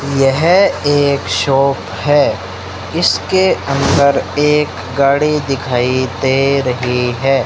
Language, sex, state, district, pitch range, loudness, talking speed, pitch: Hindi, male, Rajasthan, Bikaner, 125-145 Hz, -14 LUFS, 95 wpm, 135 Hz